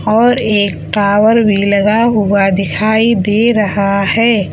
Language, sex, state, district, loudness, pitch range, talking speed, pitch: Hindi, female, Uttar Pradesh, Lalitpur, -11 LUFS, 200-225 Hz, 135 wpm, 210 Hz